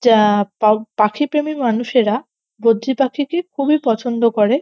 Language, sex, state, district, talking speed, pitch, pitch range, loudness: Bengali, female, West Bengal, North 24 Parganas, 105 wpm, 235 Hz, 215-285 Hz, -17 LUFS